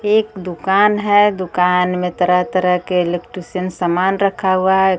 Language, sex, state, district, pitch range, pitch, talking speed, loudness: Hindi, female, Jharkhand, Garhwa, 180-195 Hz, 185 Hz, 170 wpm, -16 LUFS